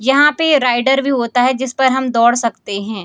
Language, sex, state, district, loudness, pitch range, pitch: Hindi, female, Bihar, Samastipur, -14 LUFS, 235-270 Hz, 255 Hz